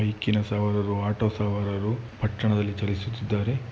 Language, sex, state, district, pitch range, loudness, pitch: Kannada, male, Karnataka, Mysore, 105-110 Hz, -27 LUFS, 105 Hz